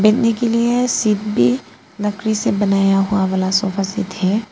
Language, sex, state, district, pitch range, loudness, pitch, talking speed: Hindi, female, Arunachal Pradesh, Papum Pare, 195-220 Hz, -17 LUFS, 205 Hz, 185 wpm